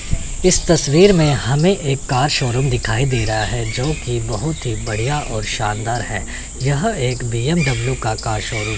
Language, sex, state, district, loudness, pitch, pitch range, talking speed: Hindi, male, Chandigarh, Chandigarh, -18 LUFS, 125 Hz, 110-145 Hz, 170 wpm